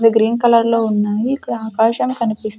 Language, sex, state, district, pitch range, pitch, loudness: Telugu, female, Andhra Pradesh, Sri Satya Sai, 220-235 Hz, 225 Hz, -16 LUFS